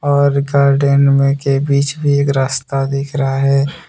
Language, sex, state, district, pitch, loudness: Hindi, male, Jharkhand, Deoghar, 140 Hz, -14 LUFS